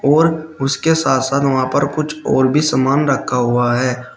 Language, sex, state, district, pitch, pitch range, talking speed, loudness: Hindi, male, Uttar Pradesh, Shamli, 135 Hz, 130-150 Hz, 185 wpm, -16 LUFS